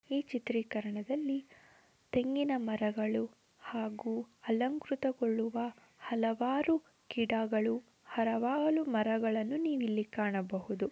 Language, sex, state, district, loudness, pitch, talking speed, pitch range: Kannada, female, Karnataka, Dharwad, -34 LUFS, 230 Hz, 75 wpm, 220-265 Hz